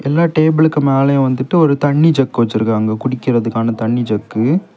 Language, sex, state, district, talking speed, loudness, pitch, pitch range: Tamil, male, Tamil Nadu, Kanyakumari, 150 wpm, -14 LUFS, 130 Hz, 115-155 Hz